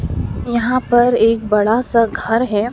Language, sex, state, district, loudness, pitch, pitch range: Hindi, female, Madhya Pradesh, Dhar, -16 LUFS, 230 Hz, 210-240 Hz